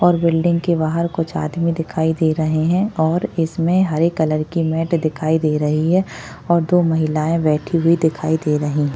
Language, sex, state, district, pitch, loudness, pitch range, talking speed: Hindi, female, Maharashtra, Chandrapur, 160 Hz, -18 LUFS, 155-170 Hz, 195 wpm